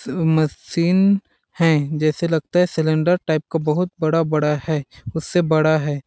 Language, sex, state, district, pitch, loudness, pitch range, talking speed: Hindi, male, Chhattisgarh, Balrampur, 160 Hz, -19 LUFS, 155-170 Hz, 150 wpm